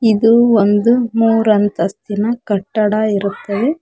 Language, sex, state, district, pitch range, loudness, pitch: Kannada, female, Karnataka, Koppal, 205-230 Hz, -14 LUFS, 215 Hz